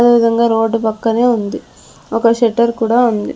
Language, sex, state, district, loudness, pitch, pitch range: Telugu, female, Andhra Pradesh, Sri Satya Sai, -14 LUFS, 230 Hz, 225-235 Hz